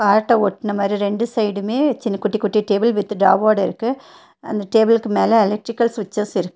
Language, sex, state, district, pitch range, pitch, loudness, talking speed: Tamil, female, Tamil Nadu, Nilgiris, 205-230 Hz, 215 Hz, -18 LUFS, 155 wpm